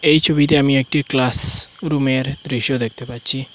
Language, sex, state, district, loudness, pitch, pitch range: Bengali, male, Assam, Hailakandi, -15 LUFS, 135 Hz, 125-150 Hz